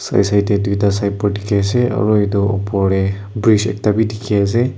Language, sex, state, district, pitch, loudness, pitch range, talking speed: Nagamese, male, Nagaland, Kohima, 100 Hz, -16 LUFS, 100-105 Hz, 215 wpm